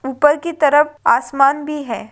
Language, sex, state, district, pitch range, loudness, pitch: Hindi, female, Maharashtra, Pune, 270-300 Hz, -16 LUFS, 295 Hz